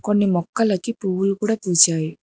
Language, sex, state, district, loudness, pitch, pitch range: Telugu, female, Telangana, Hyderabad, -19 LUFS, 195 Hz, 175-210 Hz